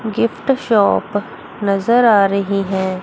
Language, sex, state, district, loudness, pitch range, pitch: Hindi, female, Chandigarh, Chandigarh, -16 LUFS, 195-230 Hz, 205 Hz